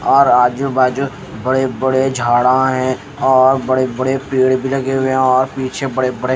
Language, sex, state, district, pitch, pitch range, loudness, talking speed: Hindi, male, Haryana, Jhajjar, 130 Hz, 130-135 Hz, -15 LUFS, 160 wpm